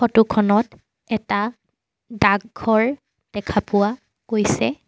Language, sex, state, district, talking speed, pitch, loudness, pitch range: Assamese, female, Assam, Sonitpur, 85 wpm, 215 Hz, -20 LUFS, 205-225 Hz